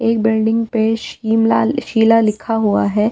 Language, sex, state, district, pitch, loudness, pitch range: Hindi, female, Delhi, New Delhi, 225 Hz, -16 LUFS, 220-225 Hz